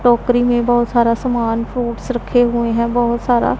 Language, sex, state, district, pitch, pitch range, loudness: Hindi, female, Punjab, Pathankot, 240 Hz, 235-245 Hz, -16 LUFS